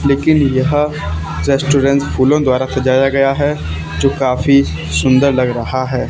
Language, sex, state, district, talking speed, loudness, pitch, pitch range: Hindi, male, Haryana, Charkhi Dadri, 140 wpm, -14 LUFS, 130 Hz, 125-140 Hz